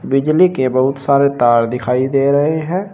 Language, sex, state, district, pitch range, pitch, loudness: Hindi, male, Uttar Pradesh, Shamli, 130-155 Hz, 135 Hz, -14 LUFS